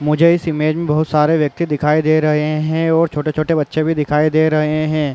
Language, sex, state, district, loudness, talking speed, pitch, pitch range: Hindi, male, Uttar Pradesh, Varanasi, -16 LUFS, 220 wpm, 155 Hz, 150-160 Hz